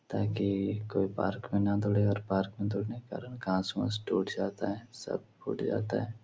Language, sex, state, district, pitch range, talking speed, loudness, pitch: Hindi, male, Bihar, Supaul, 100-115 Hz, 200 wpm, -33 LUFS, 105 Hz